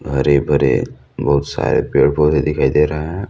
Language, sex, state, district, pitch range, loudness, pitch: Hindi, male, Chhattisgarh, Balrampur, 70-75 Hz, -16 LUFS, 75 Hz